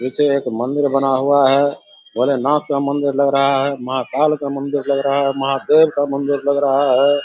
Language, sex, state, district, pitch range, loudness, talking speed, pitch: Hindi, male, Bihar, Samastipur, 135-145 Hz, -17 LUFS, 205 wpm, 140 Hz